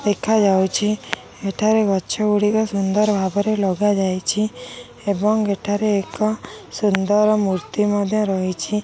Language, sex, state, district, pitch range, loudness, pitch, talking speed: Odia, female, Odisha, Khordha, 195-215 Hz, -19 LUFS, 205 Hz, 95 wpm